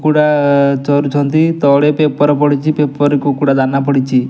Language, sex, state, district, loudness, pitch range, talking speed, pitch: Odia, male, Odisha, Nuapada, -12 LUFS, 140-150 Hz, 155 wpm, 145 Hz